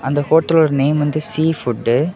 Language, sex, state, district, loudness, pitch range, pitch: Tamil, male, Tamil Nadu, Kanyakumari, -16 LUFS, 140-160 Hz, 150 Hz